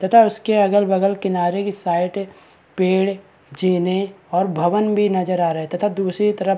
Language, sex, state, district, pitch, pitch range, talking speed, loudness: Hindi, male, Uttar Pradesh, Varanasi, 195 Hz, 180-200 Hz, 165 wpm, -19 LUFS